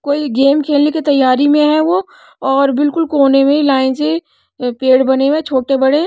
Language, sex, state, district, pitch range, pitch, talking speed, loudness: Hindi, female, Odisha, Nuapada, 270-300 Hz, 285 Hz, 200 wpm, -13 LUFS